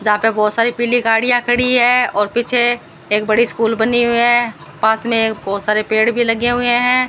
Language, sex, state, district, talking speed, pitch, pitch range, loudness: Hindi, female, Rajasthan, Bikaner, 220 wpm, 230 Hz, 220-240 Hz, -14 LUFS